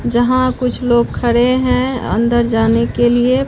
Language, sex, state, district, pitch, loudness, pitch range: Hindi, female, Bihar, Katihar, 240 Hz, -14 LUFS, 235-255 Hz